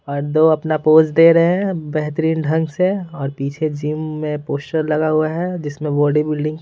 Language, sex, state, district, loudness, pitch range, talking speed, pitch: Hindi, male, Bihar, Patna, -17 LUFS, 150-160 Hz, 200 wpm, 155 Hz